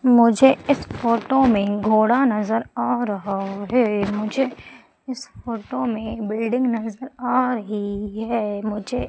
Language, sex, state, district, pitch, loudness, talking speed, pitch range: Hindi, female, Madhya Pradesh, Umaria, 230 Hz, -21 LUFS, 130 wpm, 210-250 Hz